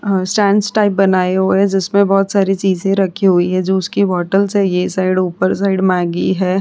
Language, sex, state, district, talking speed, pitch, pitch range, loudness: Hindi, female, Chhattisgarh, Korba, 210 wpm, 190 Hz, 185-195 Hz, -14 LUFS